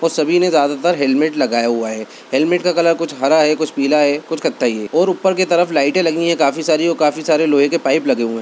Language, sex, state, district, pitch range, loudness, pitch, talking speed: Hindi, female, Bihar, Bhagalpur, 140-170 Hz, -15 LUFS, 155 Hz, 270 wpm